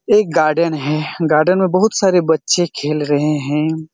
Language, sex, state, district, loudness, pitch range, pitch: Hindi, male, Chhattisgarh, Raigarh, -16 LUFS, 150-180 Hz, 160 Hz